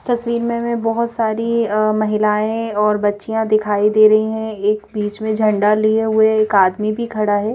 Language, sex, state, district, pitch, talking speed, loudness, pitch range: Hindi, female, Madhya Pradesh, Bhopal, 215 Hz, 190 wpm, -17 LUFS, 210-225 Hz